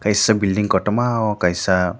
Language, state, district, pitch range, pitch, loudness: Kokborok, Tripura, Dhalai, 95-110 Hz, 105 Hz, -18 LUFS